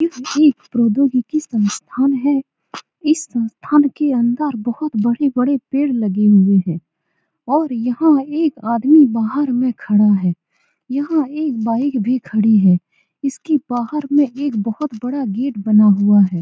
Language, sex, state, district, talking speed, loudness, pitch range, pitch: Hindi, female, Bihar, Saran, 140 wpm, -16 LUFS, 215-285 Hz, 250 Hz